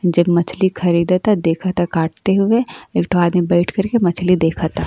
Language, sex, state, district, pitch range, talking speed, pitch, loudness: Bhojpuri, female, Uttar Pradesh, Ghazipur, 170-190 Hz, 150 wpm, 175 Hz, -16 LUFS